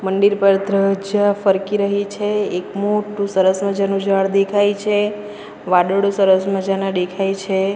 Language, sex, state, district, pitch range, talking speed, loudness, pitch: Gujarati, female, Gujarat, Valsad, 195-205 Hz, 140 wpm, -17 LUFS, 195 Hz